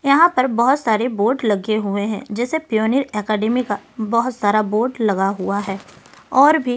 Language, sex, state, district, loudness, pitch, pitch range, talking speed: Hindi, female, Delhi, New Delhi, -18 LUFS, 220 Hz, 210-255 Hz, 175 wpm